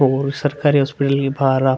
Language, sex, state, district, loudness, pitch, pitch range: Hindi, male, Uttar Pradesh, Hamirpur, -18 LUFS, 140 Hz, 135-140 Hz